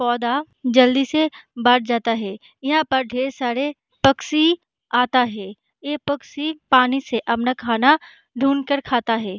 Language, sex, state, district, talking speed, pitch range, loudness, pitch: Hindi, female, Bihar, Jahanabad, 145 wpm, 240-285 Hz, -20 LUFS, 260 Hz